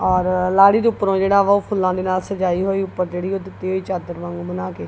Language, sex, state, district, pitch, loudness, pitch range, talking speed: Punjabi, female, Punjab, Kapurthala, 185 Hz, -19 LUFS, 180-195 Hz, 260 wpm